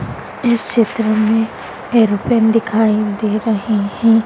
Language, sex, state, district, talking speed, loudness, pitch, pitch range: Hindi, female, Madhya Pradesh, Dhar, 115 wpm, -15 LUFS, 220 Hz, 215-230 Hz